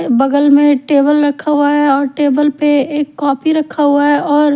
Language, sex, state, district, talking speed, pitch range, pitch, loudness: Hindi, female, Haryana, Rohtak, 195 wpm, 285-295 Hz, 290 Hz, -12 LUFS